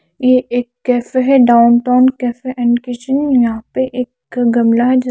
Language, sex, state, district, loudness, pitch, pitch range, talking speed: Hindi, female, Chandigarh, Chandigarh, -14 LUFS, 245 Hz, 240-255 Hz, 150 wpm